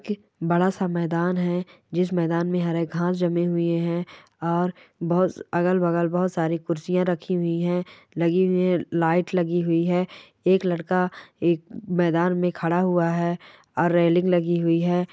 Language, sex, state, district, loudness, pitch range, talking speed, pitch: Hindi, female, Rajasthan, Churu, -23 LUFS, 170-180 Hz, 165 wpm, 175 Hz